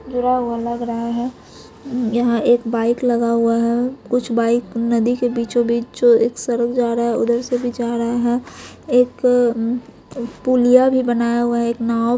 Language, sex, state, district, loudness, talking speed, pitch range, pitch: Hindi, female, Bihar, Muzaffarpur, -18 LUFS, 180 wpm, 235-245 Hz, 240 Hz